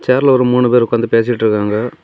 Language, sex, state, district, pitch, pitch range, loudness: Tamil, male, Tamil Nadu, Kanyakumari, 120 Hz, 115-125 Hz, -13 LUFS